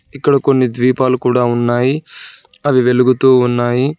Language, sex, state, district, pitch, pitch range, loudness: Telugu, male, Telangana, Hyderabad, 125 Hz, 125-130 Hz, -13 LUFS